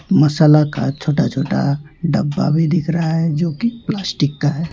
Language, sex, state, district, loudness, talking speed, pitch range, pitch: Hindi, male, West Bengal, Alipurduar, -17 LUFS, 180 wpm, 150-170 Hz, 160 Hz